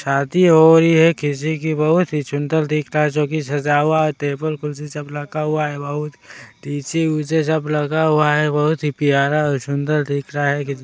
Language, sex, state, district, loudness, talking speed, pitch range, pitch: Hindi, male, Chhattisgarh, Sarguja, -18 LUFS, 190 wpm, 145-155 Hz, 150 Hz